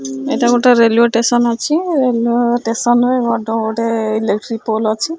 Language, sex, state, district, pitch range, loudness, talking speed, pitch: Odia, female, Odisha, Khordha, 225-245 Hz, -14 LUFS, 150 wpm, 235 Hz